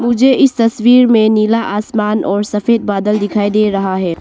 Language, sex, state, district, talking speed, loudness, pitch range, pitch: Hindi, female, Arunachal Pradesh, Longding, 185 wpm, -12 LUFS, 205-235 Hz, 215 Hz